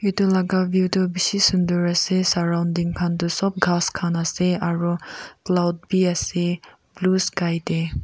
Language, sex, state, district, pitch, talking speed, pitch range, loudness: Nagamese, female, Nagaland, Kohima, 175 Hz, 155 wpm, 170-185 Hz, -21 LUFS